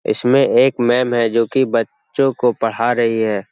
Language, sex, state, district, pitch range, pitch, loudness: Hindi, male, Bihar, Jamui, 115-125 Hz, 120 Hz, -16 LUFS